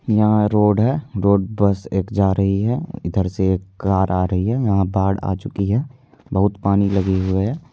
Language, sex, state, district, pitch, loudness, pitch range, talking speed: Hindi, male, Bihar, Purnia, 100 Hz, -19 LUFS, 95-110 Hz, 200 wpm